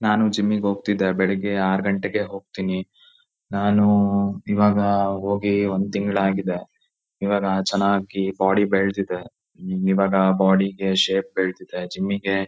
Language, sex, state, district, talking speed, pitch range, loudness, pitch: Kannada, male, Karnataka, Shimoga, 115 wpm, 95-100 Hz, -21 LUFS, 100 Hz